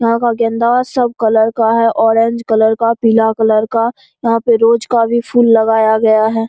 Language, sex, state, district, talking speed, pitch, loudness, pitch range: Hindi, female, Bihar, Saharsa, 205 wpm, 230 Hz, -12 LUFS, 225-235 Hz